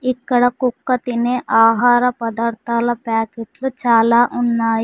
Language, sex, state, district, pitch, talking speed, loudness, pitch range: Telugu, female, Telangana, Mahabubabad, 240 Hz, 100 wpm, -17 LUFS, 230-250 Hz